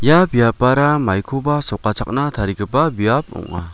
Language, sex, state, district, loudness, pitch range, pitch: Garo, male, Meghalaya, West Garo Hills, -17 LUFS, 100-145 Hz, 120 Hz